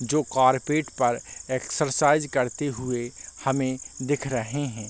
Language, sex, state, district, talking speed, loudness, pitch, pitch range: Hindi, male, Chhattisgarh, Bilaspur, 120 wpm, -25 LUFS, 130 Hz, 125-145 Hz